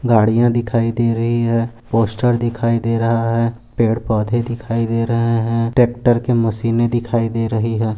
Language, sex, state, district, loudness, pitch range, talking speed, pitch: Hindi, male, Maharashtra, Aurangabad, -17 LUFS, 115-120 Hz, 165 wpm, 115 Hz